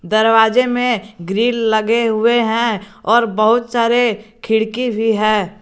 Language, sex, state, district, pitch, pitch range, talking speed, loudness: Hindi, male, Jharkhand, Garhwa, 225 Hz, 215-235 Hz, 130 wpm, -15 LUFS